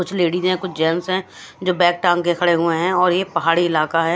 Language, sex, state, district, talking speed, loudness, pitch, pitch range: Hindi, female, Punjab, Fazilka, 260 wpm, -18 LUFS, 175 Hz, 165-185 Hz